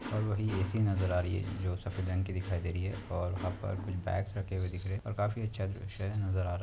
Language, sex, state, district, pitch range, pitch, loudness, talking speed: Hindi, male, Maharashtra, Nagpur, 90-100 Hz, 95 Hz, -35 LUFS, 255 wpm